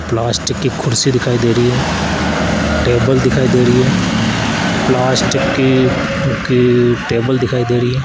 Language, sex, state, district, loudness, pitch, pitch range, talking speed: Hindi, male, Rajasthan, Jaipur, -14 LUFS, 125 Hz, 120-130 Hz, 150 wpm